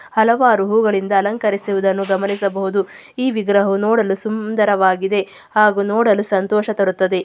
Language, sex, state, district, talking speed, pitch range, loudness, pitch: Kannada, female, Karnataka, Chamarajanagar, 110 wpm, 195-215 Hz, -17 LUFS, 200 Hz